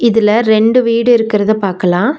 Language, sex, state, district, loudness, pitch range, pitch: Tamil, female, Tamil Nadu, Nilgiris, -11 LUFS, 210-235 Hz, 220 Hz